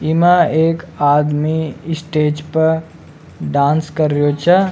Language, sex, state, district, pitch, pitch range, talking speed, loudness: Rajasthani, male, Rajasthan, Nagaur, 160 Hz, 150-165 Hz, 125 wpm, -15 LUFS